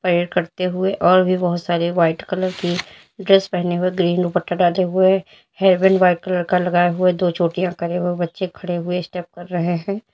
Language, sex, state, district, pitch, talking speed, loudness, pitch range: Hindi, female, Uttar Pradesh, Lalitpur, 180 Hz, 195 wpm, -19 LUFS, 175-185 Hz